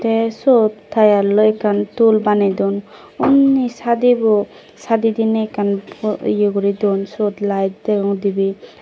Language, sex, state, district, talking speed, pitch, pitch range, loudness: Chakma, female, Tripura, Dhalai, 135 wpm, 210 Hz, 200-225 Hz, -16 LUFS